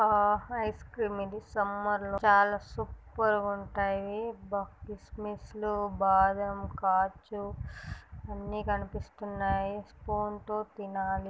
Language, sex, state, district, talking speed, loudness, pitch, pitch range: Telugu, female, Telangana, Nalgonda, 95 wpm, -31 LUFS, 205 Hz, 200-210 Hz